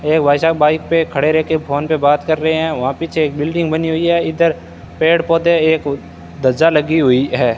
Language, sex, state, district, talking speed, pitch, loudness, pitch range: Hindi, male, Rajasthan, Bikaner, 230 wpm, 160 Hz, -15 LUFS, 145-165 Hz